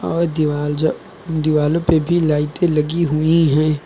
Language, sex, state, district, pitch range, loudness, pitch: Hindi, male, Uttar Pradesh, Lucknow, 150-165 Hz, -17 LUFS, 155 Hz